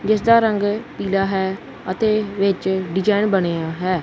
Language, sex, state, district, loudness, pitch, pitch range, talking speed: Punjabi, male, Punjab, Kapurthala, -19 LUFS, 195 Hz, 190-210 Hz, 150 wpm